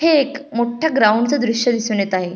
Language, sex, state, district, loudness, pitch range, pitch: Marathi, female, Maharashtra, Pune, -17 LUFS, 215-285 Hz, 235 Hz